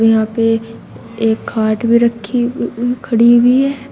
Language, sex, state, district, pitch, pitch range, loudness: Hindi, female, Uttar Pradesh, Shamli, 230 Hz, 225-245 Hz, -14 LUFS